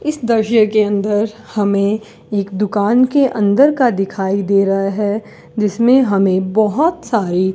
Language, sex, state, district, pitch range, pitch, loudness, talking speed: Hindi, female, Rajasthan, Bikaner, 200-230 Hz, 210 Hz, -15 LUFS, 135 wpm